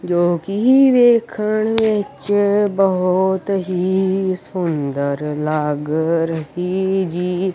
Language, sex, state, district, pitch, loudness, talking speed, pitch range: Punjabi, male, Punjab, Kapurthala, 185 Hz, -18 LUFS, 80 wpm, 165-205 Hz